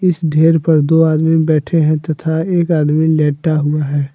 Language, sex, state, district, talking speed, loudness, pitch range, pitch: Hindi, male, Jharkhand, Deoghar, 190 wpm, -14 LUFS, 150-160 Hz, 160 Hz